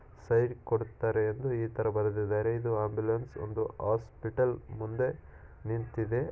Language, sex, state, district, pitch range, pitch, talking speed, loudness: Kannada, male, Karnataka, Shimoga, 110-120 Hz, 115 Hz, 115 wpm, -32 LUFS